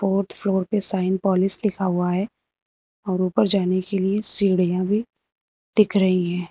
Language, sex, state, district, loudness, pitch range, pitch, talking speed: Hindi, female, Uttar Pradesh, Lucknow, -19 LUFS, 185-200 Hz, 190 Hz, 155 wpm